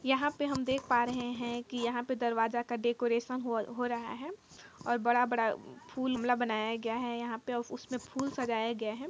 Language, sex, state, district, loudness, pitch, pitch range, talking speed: Hindi, female, Chhattisgarh, Kabirdham, -33 LUFS, 240 Hz, 235-255 Hz, 225 wpm